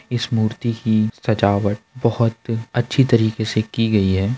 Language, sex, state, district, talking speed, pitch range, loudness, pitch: Hindi, male, Uttar Pradesh, Budaun, 150 wpm, 110-120 Hz, -19 LUFS, 115 Hz